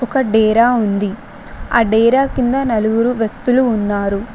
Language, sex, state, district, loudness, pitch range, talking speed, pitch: Telugu, female, Telangana, Mahabubabad, -15 LUFS, 215-250 Hz, 125 wpm, 230 Hz